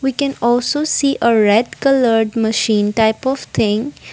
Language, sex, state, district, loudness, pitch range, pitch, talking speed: English, female, Assam, Kamrup Metropolitan, -15 LUFS, 220-275 Hz, 235 Hz, 160 wpm